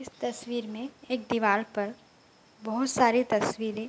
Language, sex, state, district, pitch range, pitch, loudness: Hindi, female, Bihar, East Champaran, 215-245 Hz, 230 Hz, -28 LUFS